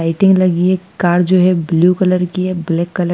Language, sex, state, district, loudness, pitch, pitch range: Hindi, female, Madhya Pradesh, Dhar, -14 LUFS, 180 Hz, 175-185 Hz